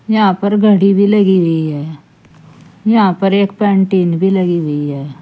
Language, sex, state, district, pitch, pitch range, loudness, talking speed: Hindi, female, Uttar Pradesh, Saharanpur, 190 Hz, 160-200 Hz, -13 LUFS, 170 wpm